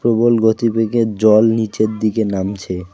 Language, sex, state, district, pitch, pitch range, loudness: Bengali, male, West Bengal, Alipurduar, 110 Hz, 105-115 Hz, -16 LUFS